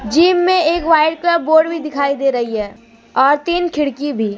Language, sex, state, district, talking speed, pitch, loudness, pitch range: Hindi, female, Jharkhand, Deoghar, 220 wpm, 300 Hz, -15 LUFS, 265-335 Hz